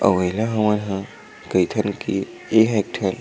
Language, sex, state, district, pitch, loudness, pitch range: Chhattisgarhi, male, Chhattisgarh, Sukma, 105 Hz, -21 LUFS, 95-110 Hz